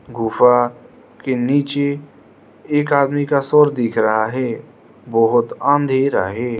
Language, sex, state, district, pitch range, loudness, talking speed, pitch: Hindi, male, Arunachal Pradesh, Lower Dibang Valley, 120-140 Hz, -17 LUFS, 120 wpm, 130 Hz